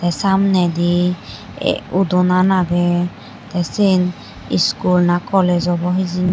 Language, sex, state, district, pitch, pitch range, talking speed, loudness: Chakma, female, Tripura, West Tripura, 180 Hz, 175-185 Hz, 95 wpm, -17 LUFS